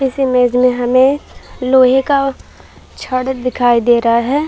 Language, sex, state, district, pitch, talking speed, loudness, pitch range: Hindi, female, Chhattisgarh, Bilaspur, 255 Hz, 145 wpm, -13 LUFS, 245-270 Hz